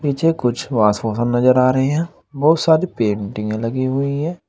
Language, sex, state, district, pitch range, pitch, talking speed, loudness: Hindi, male, Uttar Pradesh, Saharanpur, 115-160 Hz, 130 Hz, 185 wpm, -18 LUFS